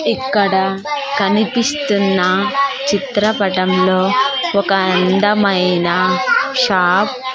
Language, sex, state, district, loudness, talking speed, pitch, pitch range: Telugu, female, Andhra Pradesh, Sri Satya Sai, -15 LUFS, 55 wpm, 200 Hz, 185-260 Hz